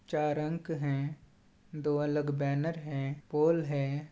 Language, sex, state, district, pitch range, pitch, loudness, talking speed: Chhattisgarhi, male, Chhattisgarh, Balrampur, 140-155 Hz, 150 Hz, -32 LUFS, 130 wpm